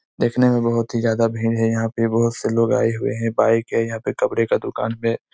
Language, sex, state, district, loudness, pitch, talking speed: Hindi, male, Chhattisgarh, Raigarh, -20 LUFS, 115 Hz, 260 wpm